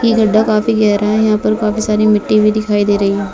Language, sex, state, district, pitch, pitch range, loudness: Hindi, female, Bihar, Begusarai, 215 Hz, 210-215 Hz, -13 LUFS